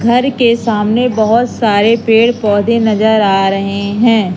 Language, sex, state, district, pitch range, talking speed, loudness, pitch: Hindi, female, Madhya Pradesh, Katni, 205-235 Hz, 150 wpm, -11 LUFS, 220 Hz